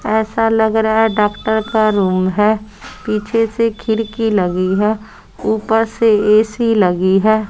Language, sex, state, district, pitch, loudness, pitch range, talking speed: Hindi, female, Bihar, West Champaran, 220 Hz, -15 LUFS, 210-225 Hz, 145 wpm